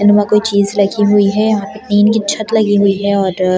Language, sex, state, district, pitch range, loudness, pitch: Hindi, female, Delhi, New Delhi, 200-210 Hz, -13 LUFS, 205 Hz